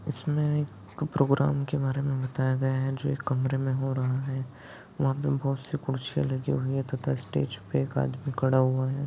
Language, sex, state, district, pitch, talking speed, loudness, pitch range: Hindi, male, Rajasthan, Churu, 135 Hz, 210 wpm, -28 LUFS, 130-140 Hz